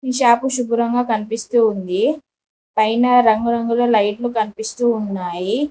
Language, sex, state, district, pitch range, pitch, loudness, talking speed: Telugu, female, Telangana, Mahabubabad, 215-245 Hz, 230 Hz, -18 LUFS, 95 wpm